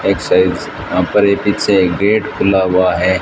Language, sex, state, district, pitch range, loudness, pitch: Hindi, male, Rajasthan, Bikaner, 90-105 Hz, -14 LUFS, 95 Hz